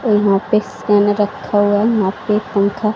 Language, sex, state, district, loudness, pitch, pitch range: Hindi, female, Haryana, Rohtak, -16 LUFS, 205 Hz, 205-215 Hz